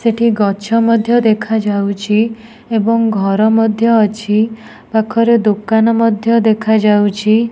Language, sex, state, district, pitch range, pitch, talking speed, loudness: Odia, female, Odisha, Nuapada, 210-230 Hz, 220 Hz, 95 wpm, -13 LUFS